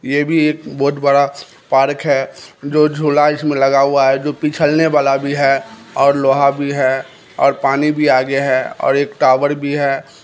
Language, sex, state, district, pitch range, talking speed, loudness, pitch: Maithili, male, Bihar, Kishanganj, 135-150 Hz, 185 wpm, -15 LUFS, 140 Hz